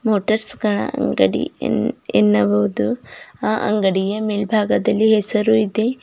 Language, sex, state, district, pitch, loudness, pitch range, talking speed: Kannada, female, Karnataka, Bidar, 215 Hz, -18 LUFS, 195-220 Hz, 100 wpm